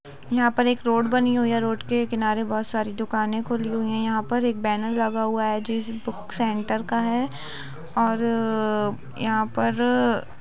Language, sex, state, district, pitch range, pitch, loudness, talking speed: Hindi, female, Jharkhand, Sahebganj, 215-235 Hz, 225 Hz, -24 LUFS, 175 wpm